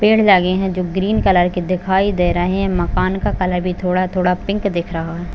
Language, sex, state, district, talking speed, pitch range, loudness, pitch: Hindi, female, Chhattisgarh, Bilaspur, 225 wpm, 180-190 Hz, -17 LUFS, 185 Hz